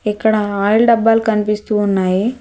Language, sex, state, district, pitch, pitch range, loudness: Telugu, female, Telangana, Hyderabad, 210 Hz, 205-225 Hz, -15 LUFS